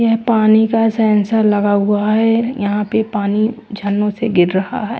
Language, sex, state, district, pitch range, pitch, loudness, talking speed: Hindi, female, Chandigarh, Chandigarh, 205-225 Hz, 215 Hz, -15 LUFS, 180 wpm